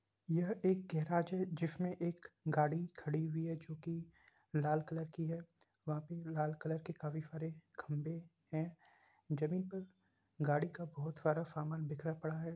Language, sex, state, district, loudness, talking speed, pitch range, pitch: Hindi, male, Bihar, Gopalganj, -41 LUFS, 160 wpm, 155-170 Hz, 160 Hz